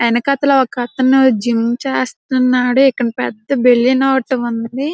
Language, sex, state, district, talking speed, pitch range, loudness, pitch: Telugu, female, Andhra Pradesh, Srikakulam, 95 wpm, 240-270 Hz, -14 LUFS, 255 Hz